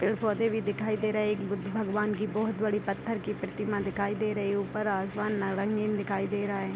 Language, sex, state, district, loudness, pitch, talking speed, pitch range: Hindi, female, Bihar, Darbhanga, -30 LUFS, 210 Hz, 215 wpm, 200-215 Hz